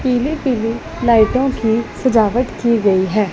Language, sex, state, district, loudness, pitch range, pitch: Hindi, female, Punjab, Pathankot, -16 LUFS, 215-255 Hz, 230 Hz